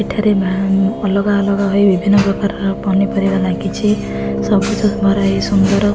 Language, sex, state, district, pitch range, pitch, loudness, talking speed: Odia, female, Odisha, Khordha, 195-205 Hz, 200 Hz, -15 LUFS, 140 wpm